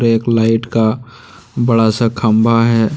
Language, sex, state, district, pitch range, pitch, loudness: Hindi, male, Jharkhand, Deoghar, 110-115 Hz, 115 Hz, -13 LUFS